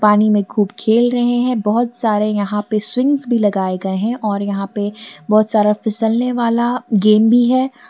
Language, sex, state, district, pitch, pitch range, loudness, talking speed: Hindi, female, Jharkhand, Garhwa, 215 Hz, 210-240 Hz, -16 LUFS, 190 wpm